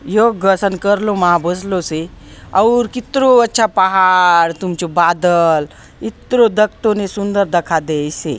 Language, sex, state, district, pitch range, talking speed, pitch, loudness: Halbi, female, Chhattisgarh, Bastar, 170-215 Hz, 135 wpm, 190 Hz, -14 LUFS